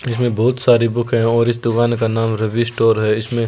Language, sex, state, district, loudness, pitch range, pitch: Hindi, male, Rajasthan, Churu, -16 LUFS, 115-120 Hz, 115 Hz